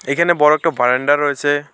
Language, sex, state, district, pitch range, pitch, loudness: Bengali, male, West Bengal, Alipurduar, 145-155 Hz, 145 Hz, -15 LUFS